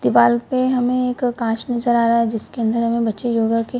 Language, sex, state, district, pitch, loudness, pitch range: Hindi, female, Bihar, Purnia, 235 Hz, -19 LUFS, 230-245 Hz